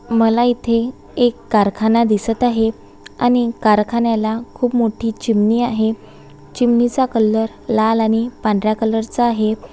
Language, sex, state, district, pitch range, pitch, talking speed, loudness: Marathi, female, Maharashtra, Chandrapur, 220-240 Hz, 225 Hz, 115 wpm, -17 LUFS